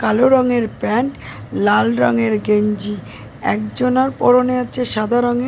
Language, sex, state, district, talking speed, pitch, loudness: Bengali, female, West Bengal, Jalpaiguri, 130 wpm, 215 Hz, -16 LUFS